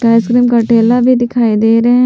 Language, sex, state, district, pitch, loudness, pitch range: Hindi, female, Jharkhand, Palamu, 235 Hz, -10 LUFS, 230-245 Hz